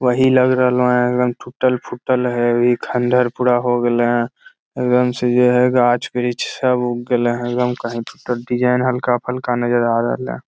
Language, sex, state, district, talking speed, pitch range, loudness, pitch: Magahi, male, Bihar, Lakhisarai, 170 wpm, 120-125 Hz, -17 LUFS, 125 Hz